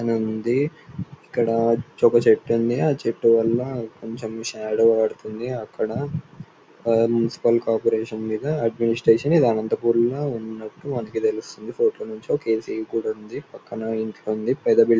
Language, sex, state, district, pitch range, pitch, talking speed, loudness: Telugu, male, Andhra Pradesh, Anantapur, 110-125 Hz, 115 Hz, 110 wpm, -22 LUFS